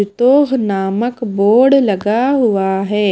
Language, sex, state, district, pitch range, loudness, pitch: Hindi, female, Himachal Pradesh, Shimla, 200-250 Hz, -14 LUFS, 215 Hz